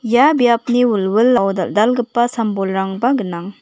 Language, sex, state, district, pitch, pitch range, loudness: Garo, female, Meghalaya, West Garo Hills, 230 Hz, 195-245 Hz, -16 LUFS